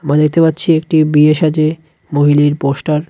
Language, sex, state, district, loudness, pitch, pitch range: Bengali, male, West Bengal, Cooch Behar, -12 LUFS, 155 Hz, 145-160 Hz